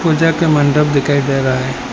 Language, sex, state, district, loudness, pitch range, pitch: Hindi, male, Assam, Hailakandi, -14 LUFS, 135-160 Hz, 145 Hz